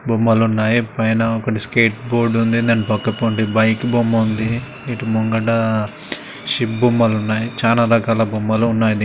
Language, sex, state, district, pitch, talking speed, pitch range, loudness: Telugu, male, Andhra Pradesh, Srikakulam, 115 Hz, 120 wpm, 110-115 Hz, -17 LUFS